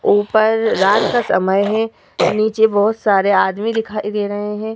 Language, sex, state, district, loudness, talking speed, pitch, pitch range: Hindi, female, Uttar Pradesh, Hamirpur, -16 LUFS, 165 wpm, 215 Hz, 205-225 Hz